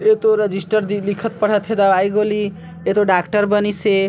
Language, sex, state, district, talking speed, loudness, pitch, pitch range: Chhattisgarhi, female, Chhattisgarh, Sarguja, 190 wpm, -17 LUFS, 205 Hz, 195-210 Hz